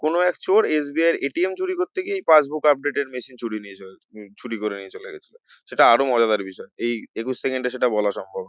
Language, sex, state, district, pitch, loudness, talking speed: Bengali, male, West Bengal, North 24 Parganas, 145 Hz, -21 LUFS, 270 wpm